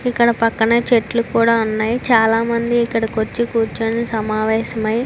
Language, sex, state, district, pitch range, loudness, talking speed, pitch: Telugu, female, Andhra Pradesh, Chittoor, 225-235 Hz, -17 LUFS, 155 wpm, 230 Hz